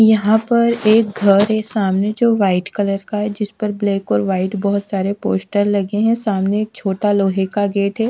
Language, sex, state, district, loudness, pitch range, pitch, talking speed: Hindi, female, Odisha, Sambalpur, -17 LUFS, 195-215 Hz, 205 Hz, 200 wpm